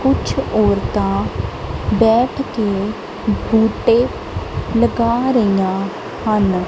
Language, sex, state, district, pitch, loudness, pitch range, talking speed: Punjabi, female, Punjab, Kapurthala, 220 Hz, -17 LUFS, 195-235 Hz, 70 wpm